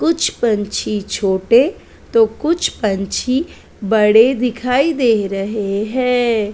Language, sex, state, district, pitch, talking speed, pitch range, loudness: Hindi, female, Maharashtra, Mumbai Suburban, 225 Hz, 110 wpm, 210-255 Hz, -16 LUFS